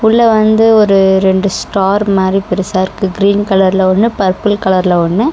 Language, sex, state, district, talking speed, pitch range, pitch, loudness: Tamil, female, Tamil Nadu, Chennai, 160 wpm, 190-215 Hz, 195 Hz, -11 LUFS